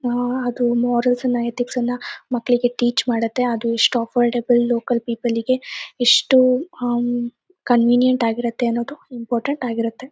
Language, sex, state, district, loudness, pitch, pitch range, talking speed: Kannada, female, Karnataka, Shimoga, -19 LUFS, 245 Hz, 240-250 Hz, 130 wpm